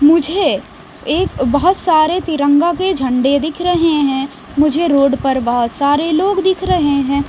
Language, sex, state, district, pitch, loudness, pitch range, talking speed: Hindi, female, Bihar, West Champaran, 295 Hz, -14 LUFS, 275-345 Hz, 155 wpm